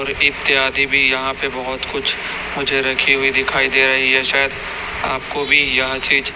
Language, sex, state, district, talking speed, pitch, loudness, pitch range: Hindi, male, Chhattisgarh, Raipur, 180 wpm, 135 Hz, -15 LUFS, 130-140 Hz